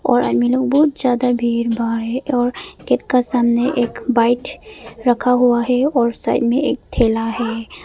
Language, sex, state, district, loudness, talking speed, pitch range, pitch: Hindi, female, Arunachal Pradesh, Papum Pare, -17 LUFS, 175 wpm, 235-255 Hz, 245 Hz